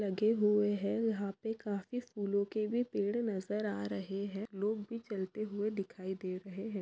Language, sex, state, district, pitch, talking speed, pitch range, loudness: Hindi, female, Maharashtra, Aurangabad, 205 Hz, 195 wpm, 195-215 Hz, -36 LUFS